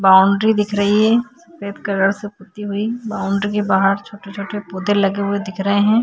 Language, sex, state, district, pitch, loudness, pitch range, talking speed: Hindi, female, Uttar Pradesh, Jyotiba Phule Nagar, 200 Hz, -18 LUFS, 195-210 Hz, 190 wpm